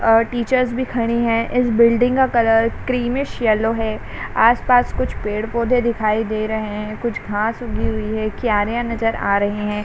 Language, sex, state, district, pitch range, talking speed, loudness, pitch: Hindi, female, Chhattisgarh, Raigarh, 215-240 Hz, 175 wpm, -19 LUFS, 230 Hz